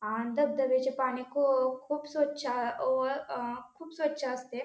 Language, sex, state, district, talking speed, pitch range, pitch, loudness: Marathi, female, Maharashtra, Pune, 130 wpm, 250-285 Hz, 260 Hz, -31 LUFS